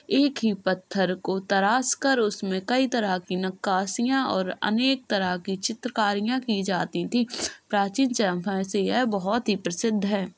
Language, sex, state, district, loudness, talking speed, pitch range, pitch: Hindi, female, Uttar Pradesh, Jalaun, -25 LUFS, 160 wpm, 190-240 Hz, 205 Hz